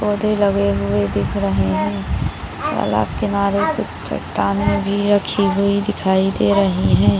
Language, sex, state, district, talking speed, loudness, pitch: Hindi, female, Uttar Pradesh, Deoria, 140 wpm, -18 LUFS, 190 Hz